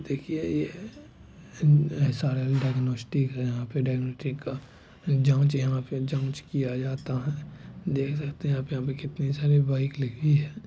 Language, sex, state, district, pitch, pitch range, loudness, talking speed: Hindi, male, Bihar, Gopalganj, 135 Hz, 130-145 Hz, -27 LUFS, 140 wpm